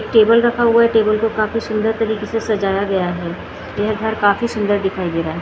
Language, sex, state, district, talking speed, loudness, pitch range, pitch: Hindi, female, Maharashtra, Gondia, 235 wpm, -17 LUFS, 195-225 Hz, 215 Hz